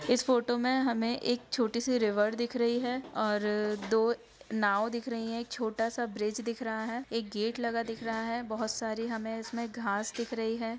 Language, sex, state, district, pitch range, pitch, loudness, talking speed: Hindi, female, Chhattisgarh, Raigarh, 220-240 Hz, 230 Hz, -32 LUFS, 205 wpm